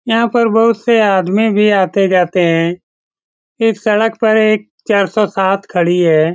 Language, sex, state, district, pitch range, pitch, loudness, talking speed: Hindi, male, Bihar, Saran, 185-225 Hz, 205 Hz, -13 LUFS, 170 wpm